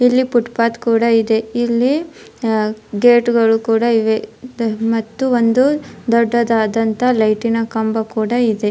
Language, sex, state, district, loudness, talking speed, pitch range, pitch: Kannada, female, Karnataka, Dharwad, -16 LUFS, 125 wpm, 225-240 Hz, 230 Hz